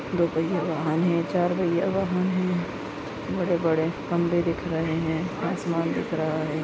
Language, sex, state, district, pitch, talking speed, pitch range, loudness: Hindi, male, Maharashtra, Nagpur, 170 Hz, 165 wpm, 160-175 Hz, -26 LUFS